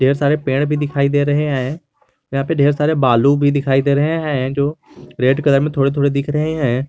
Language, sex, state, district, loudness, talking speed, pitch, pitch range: Hindi, male, Jharkhand, Garhwa, -16 LUFS, 235 wpm, 140 Hz, 135-150 Hz